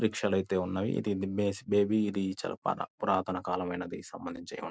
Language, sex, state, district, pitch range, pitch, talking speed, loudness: Telugu, male, Andhra Pradesh, Guntur, 95-105 Hz, 95 Hz, 155 wpm, -32 LUFS